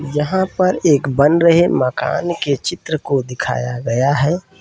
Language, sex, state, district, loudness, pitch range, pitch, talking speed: Hindi, male, Uttar Pradesh, Etah, -16 LUFS, 140-175 Hz, 150 Hz, 155 wpm